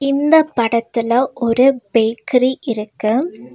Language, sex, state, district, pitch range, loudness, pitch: Tamil, female, Tamil Nadu, Nilgiris, 230-270 Hz, -16 LUFS, 240 Hz